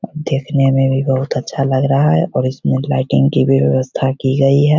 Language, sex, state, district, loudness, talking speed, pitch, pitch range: Hindi, male, Bihar, Begusarai, -15 LUFS, 215 wpm, 135 Hz, 130-135 Hz